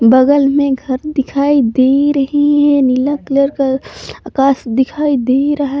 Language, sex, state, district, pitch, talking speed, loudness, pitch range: Hindi, female, Jharkhand, Palamu, 275 Hz, 145 wpm, -13 LUFS, 265-285 Hz